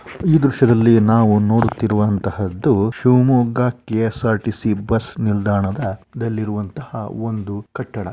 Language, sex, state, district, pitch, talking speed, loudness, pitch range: Kannada, male, Karnataka, Shimoga, 110 Hz, 110 wpm, -18 LUFS, 105-120 Hz